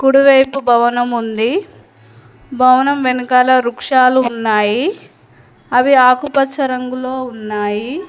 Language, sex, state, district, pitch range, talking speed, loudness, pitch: Telugu, female, Telangana, Mahabubabad, 240-270 Hz, 80 wpm, -14 LUFS, 255 Hz